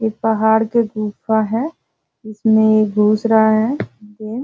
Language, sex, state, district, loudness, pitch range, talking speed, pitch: Hindi, female, Bihar, Jahanabad, -16 LUFS, 215-225 Hz, 150 wpm, 220 Hz